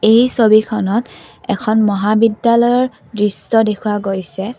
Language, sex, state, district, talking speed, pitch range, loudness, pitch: Assamese, female, Assam, Kamrup Metropolitan, 90 wpm, 205-230 Hz, -15 LUFS, 215 Hz